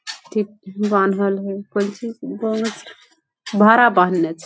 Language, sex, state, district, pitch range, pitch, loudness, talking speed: Hindi, female, Bihar, Begusarai, 195-220 Hz, 205 Hz, -18 LUFS, 135 wpm